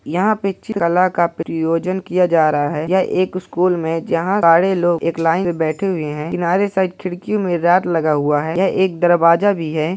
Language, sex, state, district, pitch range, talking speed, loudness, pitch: Hindi, male, Bihar, Purnia, 165-185 Hz, 210 wpm, -17 LUFS, 175 Hz